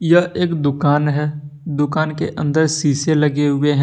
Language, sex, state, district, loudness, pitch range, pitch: Hindi, male, Jharkhand, Deoghar, -17 LUFS, 145-155 Hz, 150 Hz